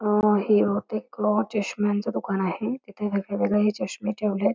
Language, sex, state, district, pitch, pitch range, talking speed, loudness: Marathi, female, Karnataka, Belgaum, 210 Hz, 200-210 Hz, 130 wpm, -25 LUFS